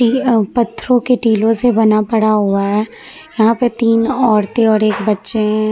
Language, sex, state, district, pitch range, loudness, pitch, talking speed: Hindi, female, Bihar, Vaishali, 215-240 Hz, -14 LUFS, 225 Hz, 165 wpm